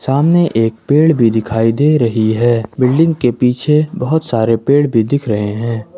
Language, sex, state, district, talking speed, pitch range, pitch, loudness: Hindi, male, Jharkhand, Ranchi, 180 wpm, 115-150 Hz, 125 Hz, -13 LUFS